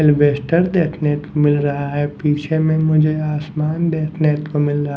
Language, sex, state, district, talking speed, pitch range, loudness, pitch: Hindi, male, Haryana, Jhajjar, 155 wpm, 145-155 Hz, -18 LUFS, 150 Hz